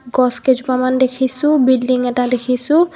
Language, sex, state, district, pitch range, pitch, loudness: Assamese, female, Assam, Kamrup Metropolitan, 250-265 Hz, 255 Hz, -15 LUFS